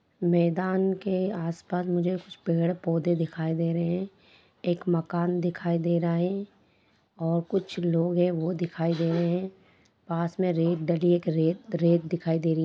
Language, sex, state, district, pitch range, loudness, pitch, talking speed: Hindi, female, Bihar, Sitamarhi, 165-180 Hz, -27 LUFS, 170 Hz, 170 wpm